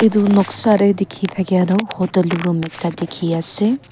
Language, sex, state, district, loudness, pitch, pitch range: Nagamese, female, Nagaland, Kohima, -17 LUFS, 190 Hz, 175-200 Hz